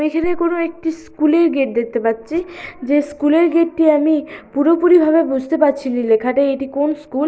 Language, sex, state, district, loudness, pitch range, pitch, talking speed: Bengali, female, West Bengal, Purulia, -16 LUFS, 275-330 Hz, 305 Hz, 200 wpm